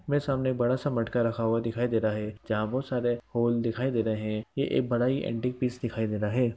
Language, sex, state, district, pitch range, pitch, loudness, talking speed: Hindi, male, Bihar, Gopalganj, 115-125 Hz, 120 Hz, -29 LUFS, 285 wpm